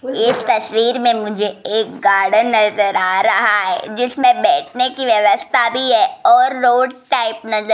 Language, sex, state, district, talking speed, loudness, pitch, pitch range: Hindi, female, Rajasthan, Jaipur, 165 wpm, -15 LUFS, 235 Hz, 215-260 Hz